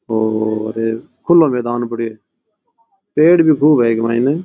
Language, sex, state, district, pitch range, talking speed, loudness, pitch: Rajasthani, male, Rajasthan, Churu, 115-160 Hz, 150 wpm, -15 LUFS, 120 Hz